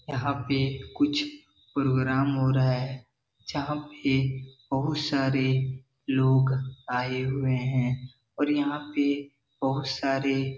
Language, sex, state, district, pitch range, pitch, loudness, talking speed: Hindi, male, Bihar, Jahanabad, 130-140 Hz, 135 Hz, -27 LUFS, 120 wpm